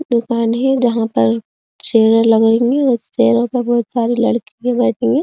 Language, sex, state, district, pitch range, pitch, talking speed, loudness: Hindi, female, Uttar Pradesh, Jyotiba Phule Nagar, 220-245 Hz, 235 Hz, 150 wpm, -15 LUFS